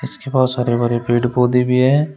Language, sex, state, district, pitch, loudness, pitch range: Hindi, male, Uttar Pradesh, Shamli, 125 Hz, -16 LUFS, 120-130 Hz